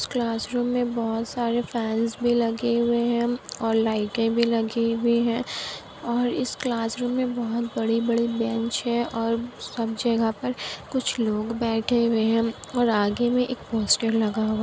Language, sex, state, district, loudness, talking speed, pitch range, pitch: Hindi, female, Bihar, Kishanganj, -25 LUFS, 170 wpm, 225-240 Hz, 235 Hz